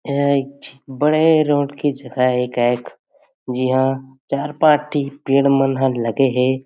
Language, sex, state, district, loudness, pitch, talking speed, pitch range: Chhattisgarhi, male, Chhattisgarh, Jashpur, -18 LUFS, 135 Hz, 160 wpm, 130-145 Hz